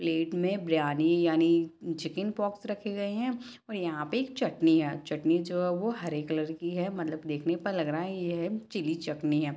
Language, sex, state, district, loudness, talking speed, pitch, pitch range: Hindi, female, Bihar, Gopalganj, -30 LUFS, 205 wpm, 170 Hz, 160-200 Hz